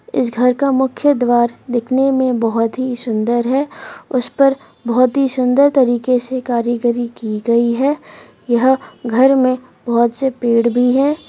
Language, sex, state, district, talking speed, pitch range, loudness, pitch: Hindi, female, Jharkhand, Sahebganj, 160 wpm, 235-265 Hz, -16 LUFS, 250 Hz